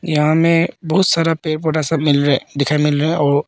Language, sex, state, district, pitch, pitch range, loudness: Hindi, male, Arunachal Pradesh, Papum Pare, 155 Hz, 145-165 Hz, -16 LUFS